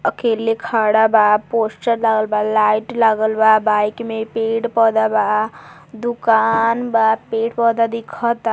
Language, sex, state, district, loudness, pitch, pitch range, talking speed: Bhojpuri, female, Uttar Pradesh, Gorakhpur, -17 LUFS, 225 Hz, 220-230 Hz, 125 wpm